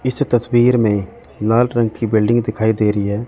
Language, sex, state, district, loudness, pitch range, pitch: Hindi, male, Chandigarh, Chandigarh, -16 LUFS, 110-120 Hz, 115 Hz